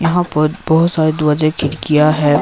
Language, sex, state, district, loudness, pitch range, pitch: Hindi, male, Himachal Pradesh, Shimla, -14 LUFS, 150-165 Hz, 155 Hz